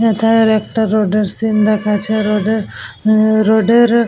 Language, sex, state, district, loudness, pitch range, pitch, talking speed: Bengali, female, West Bengal, Dakshin Dinajpur, -14 LUFS, 215-225 Hz, 215 Hz, 115 wpm